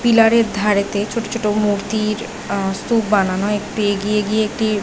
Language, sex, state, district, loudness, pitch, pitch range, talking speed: Bengali, female, West Bengal, Jhargram, -18 LUFS, 210 Hz, 205-220 Hz, 175 wpm